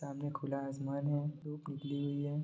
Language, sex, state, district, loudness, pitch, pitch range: Hindi, male, Jharkhand, Jamtara, -39 LUFS, 145 Hz, 140-145 Hz